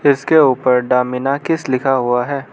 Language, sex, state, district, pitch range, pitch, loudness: Hindi, male, Arunachal Pradesh, Lower Dibang Valley, 125-140 Hz, 130 Hz, -15 LUFS